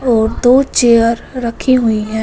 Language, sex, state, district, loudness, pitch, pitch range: Hindi, female, Punjab, Fazilka, -12 LUFS, 235 Hz, 225-255 Hz